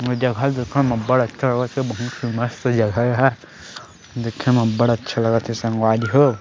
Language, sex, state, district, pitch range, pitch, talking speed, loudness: Chhattisgarhi, male, Chhattisgarh, Sarguja, 115-130 Hz, 120 Hz, 195 wpm, -20 LUFS